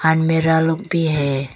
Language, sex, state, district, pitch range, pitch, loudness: Hindi, female, Arunachal Pradesh, Longding, 150-160 Hz, 160 Hz, -18 LUFS